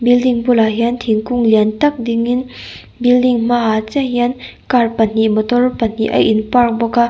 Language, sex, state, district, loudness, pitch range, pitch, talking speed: Mizo, female, Mizoram, Aizawl, -14 LUFS, 225-245 Hz, 235 Hz, 170 wpm